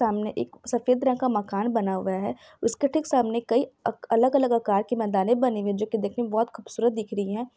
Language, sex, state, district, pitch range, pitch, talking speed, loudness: Hindi, female, Jharkhand, Sahebganj, 210-250 Hz, 230 Hz, 230 wpm, -25 LUFS